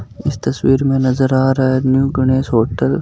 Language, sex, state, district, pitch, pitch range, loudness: Marwari, male, Rajasthan, Nagaur, 130 Hz, 130-135 Hz, -15 LUFS